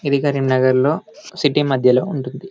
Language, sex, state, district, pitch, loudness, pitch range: Telugu, male, Telangana, Karimnagar, 140 Hz, -17 LUFS, 130-145 Hz